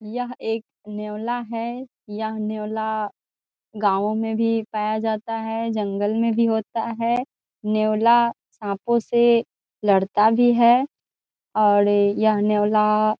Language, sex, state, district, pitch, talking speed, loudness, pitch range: Hindi, female, Bihar, Saran, 220 Hz, 120 wpm, -21 LUFS, 210-230 Hz